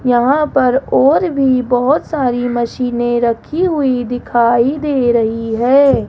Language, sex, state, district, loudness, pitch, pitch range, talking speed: Hindi, female, Rajasthan, Jaipur, -14 LUFS, 250 Hz, 240-280 Hz, 130 wpm